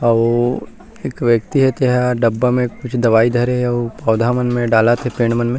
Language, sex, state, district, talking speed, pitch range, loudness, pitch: Chhattisgarhi, male, Chhattisgarh, Rajnandgaon, 215 wpm, 115-125 Hz, -16 LUFS, 120 Hz